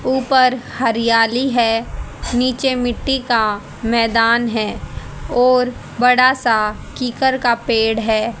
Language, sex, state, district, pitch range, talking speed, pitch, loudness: Hindi, female, Haryana, Charkhi Dadri, 225-255 Hz, 105 wpm, 235 Hz, -16 LUFS